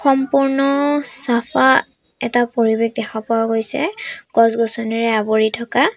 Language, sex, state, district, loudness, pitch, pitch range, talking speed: Assamese, female, Assam, Sonitpur, -17 LUFS, 235 Hz, 225-275 Hz, 100 wpm